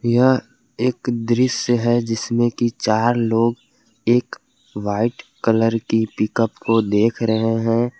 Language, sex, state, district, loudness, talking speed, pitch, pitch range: Hindi, male, Jharkhand, Garhwa, -19 LUFS, 125 wpm, 115 Hz, 115-120 Hz